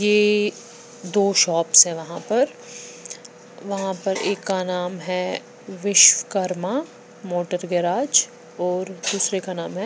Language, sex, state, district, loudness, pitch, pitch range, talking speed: Hindi, female, Punjab, Pathankot, -20 LUFS, 190 Hz, 180-205 Hz, 120 wpm